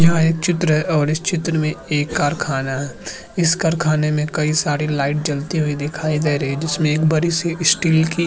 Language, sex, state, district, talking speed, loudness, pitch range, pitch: Hindi, male, Uttarakhand, Tehri Garhwal, 210 wpm, -19 LUFS, 150-165 Hz, 155 Hz